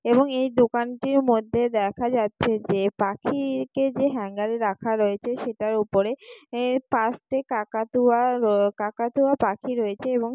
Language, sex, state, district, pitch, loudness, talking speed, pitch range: Bengali, female, West Bengal, Jalpaiguri, 235 Hz, -24 LUFS, 140 wpm, 210-250 Hz